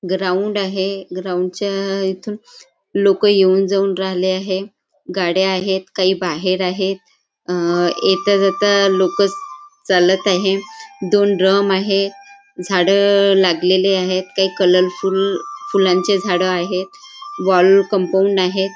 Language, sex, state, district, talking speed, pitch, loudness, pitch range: Marathi, female, Maharashtra, Nagpur, 110 wpm, 195 Hz, -16 LUFS, 185-200 Hz